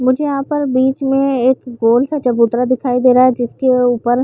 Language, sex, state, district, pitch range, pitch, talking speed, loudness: Hindi, female, Chhattisgarh, Bilaspur, 245-270 Hz, 255 Hz, 210 wpm, -14 LUFS